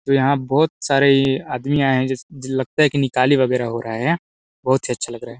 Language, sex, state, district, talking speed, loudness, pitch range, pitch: Hindi, male, Chhattisgarh, Sarguja, 275 wpm, -19 LUFS, 125-140 Hz, 135 Hz